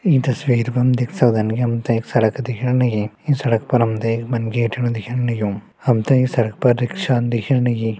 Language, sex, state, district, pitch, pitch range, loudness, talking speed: Garhwali, male, Uttarakhand, Uttarkashi, 120 Hz, 115-125 Hz, -19 LUFS, 210 wpm